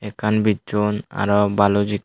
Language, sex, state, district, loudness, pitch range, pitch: Chakma, male, Tripura, Dhalai, -19 LUFS, 100-105 Hz, 105 Hz